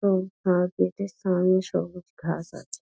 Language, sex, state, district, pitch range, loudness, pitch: Bengali, female, West Bengal, Dakshin Dinajpur, 180-190 Hz, -26 LUFS, 185 Hz